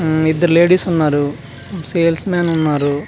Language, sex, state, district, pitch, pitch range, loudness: Telugu, male, Andhra Pradesh, Manyam, 160 Hz, 145-170 Hz, -15 LUFS